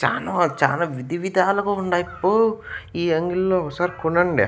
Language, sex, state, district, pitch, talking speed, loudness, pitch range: Telugu, male, Andhra Pradesh, Annamaya, 175 Hz, 120 wpm, -21 LUFS, 170-185 Hz